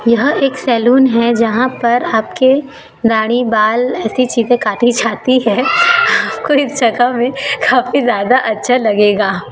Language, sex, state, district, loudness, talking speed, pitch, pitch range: Hindi, female, Chhattisgarh, Raipur, -13 LUFS, 140 wpm, 245 Hz, 225-260 Hz